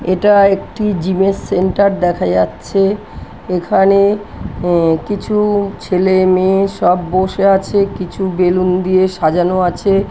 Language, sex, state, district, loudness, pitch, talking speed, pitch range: Bengali, female, West Bengal, North 24 Parganas, -14 LUFS, 190 Hz, 115 wpm, 180-200 Hz